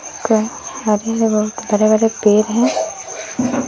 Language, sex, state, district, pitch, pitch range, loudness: Hindi, female, Bihar, West Champaran, 220 Hz, 215-235 Hz, -17 LUFS